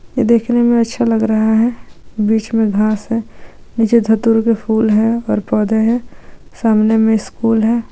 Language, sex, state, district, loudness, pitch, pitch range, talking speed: Hindi, female, Maharashtra, Aurangabad, -14 LUFS, 225 Hz, 220-235 Hz, 165 wpm